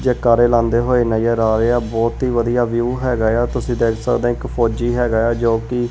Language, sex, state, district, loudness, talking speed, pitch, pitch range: Punjabi, male, Punjab, Kapurthala, -17 LUFS, 255 wpm, 120 Hz, 115-120 Hz